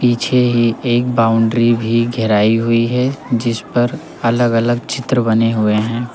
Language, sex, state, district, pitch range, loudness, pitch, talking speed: Hindi, male, Uttar Pradesh, Lalitpur, 115-120 Hz, -15 LUFS, 115 Hz, 135 wpm